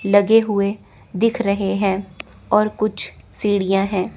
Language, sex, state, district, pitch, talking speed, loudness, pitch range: Hindi, female, Chandigarh, Chandigarh, 200 Hz, 130 wpm, -19 LUFS, 195-210 Hz